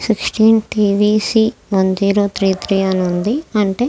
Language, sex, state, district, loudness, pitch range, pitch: Telugu, female, Andhra Pradesh, Krishna, -15 LUFS, 195-220 Hz, 205 Hz